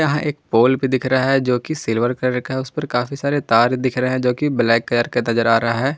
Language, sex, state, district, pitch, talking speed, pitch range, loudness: Hindi, male, Jharkhand, Ranchi, 130 Hz, 270 wpm, 120-135 Hz, -18 LUFS